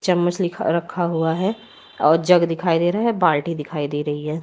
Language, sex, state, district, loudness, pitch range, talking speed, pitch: Hindi, female, Uttar Pradesh, Lalitpur, -20 LUFS, 155-180 Hz, 230 wpm, 170 Hz